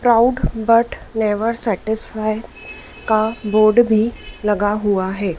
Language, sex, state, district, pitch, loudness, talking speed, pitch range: Hindi, female, Madhya Pradesh, Dhar, 220 Hz, -18 LUFS, 110 wpm, 210-230 Hz